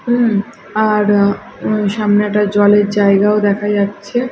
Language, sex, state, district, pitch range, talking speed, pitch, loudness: Bengali, female, Odisha, Khordha, 205-215 Hz, 110 wpm, 205 Hz, -14 LUFS